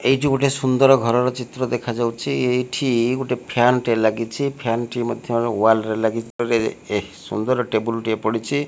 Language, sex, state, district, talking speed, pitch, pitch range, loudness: Odia, male, Odisha, Malkangiri, 175 wpm, 120 Hz, 115-130 Hz, -20 LUFS